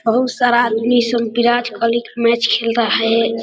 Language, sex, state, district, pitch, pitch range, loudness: Hindi, male, Bihar, Darbhanga, 235 Hz, 230-240 Hz, -16 LUFS